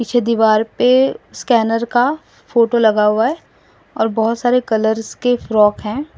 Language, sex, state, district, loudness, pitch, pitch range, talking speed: Hindi, female, Assam, Sonitpur, -15 LUFS, 230 Hz, 220-245 Hz, 155 wpm